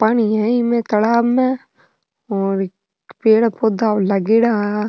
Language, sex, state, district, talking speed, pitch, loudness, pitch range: Rajasthani, female, Rajasthan, Nagaur, 110 wpm, 220 Hz, -17 LUFS, 205-235 Hz